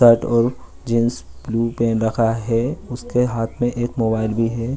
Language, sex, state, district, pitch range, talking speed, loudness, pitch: Hindi, male, Bihar, Gaya, 115-120 Hz, 150 wpm, -20 LUFS, 115 Hz